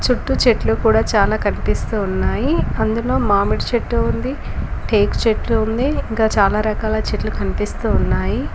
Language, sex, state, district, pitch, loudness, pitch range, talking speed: Telugu, female, Telangana, Komaram Bheem, 220 Hz, -18 LUFS, 215-230 Hz, 135 wpm